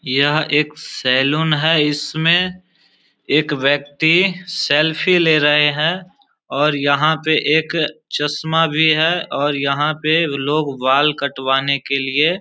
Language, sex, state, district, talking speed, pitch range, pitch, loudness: Hindi, male, Bihar, Samastipur, 130 wpm, 140-160 Hz, 150 Hz, -16 LUFS